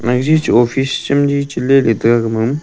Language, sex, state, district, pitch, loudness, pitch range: Wancho, male, Arunachal Pradesh, Longding, 130 Hz, -14 LUFS, 115-140 Hz